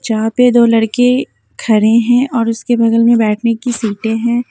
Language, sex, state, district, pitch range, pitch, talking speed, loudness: Hindi, female, Haryana, Jhajjar, 225-245 Hz, 230 Hz, 185 wpm, -12 LUFS